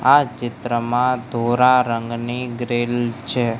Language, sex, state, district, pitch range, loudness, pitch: Gujarati, male, Gujarat, Gandhinagar, 120-125 Hz, -20 LUFS, 120 Hz